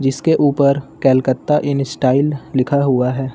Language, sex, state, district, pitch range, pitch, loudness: Hindi, male, Uttar Pradesh, Lucknow, 130-145 Hz, 140 Hz, -16 LUFS